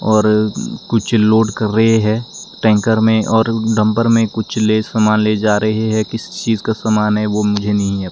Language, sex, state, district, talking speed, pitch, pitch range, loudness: Hindi, male, Himachal Pradesh, Shimla, 205 wpm, 110 Hz, 105-110 Hz, -15 LUFS